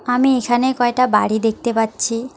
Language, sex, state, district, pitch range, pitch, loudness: Bengali, female, West Bengal, Alipurduar, 230-255 Hz, 240 Hz, -17 LUFS